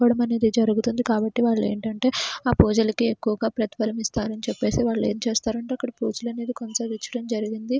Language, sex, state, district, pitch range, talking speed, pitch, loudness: Telugu, female, Andhra Pradesh, Srikakulam, 220-240 Hz, 155 wpm, 225 Hz, -24 LUFS